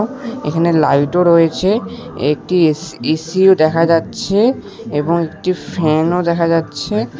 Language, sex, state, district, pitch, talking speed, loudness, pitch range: Bengali, male, West Bengal, Alipurduar, 165 Hz, 125 wpm, -15 LUFS, 155-190 Hz